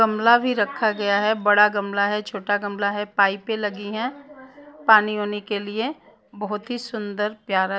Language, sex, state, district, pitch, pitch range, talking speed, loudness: Hindi, female, Punjab, Pathankot, 210 Hz, 205-225 Hz, 170 wpm, -22 LUFS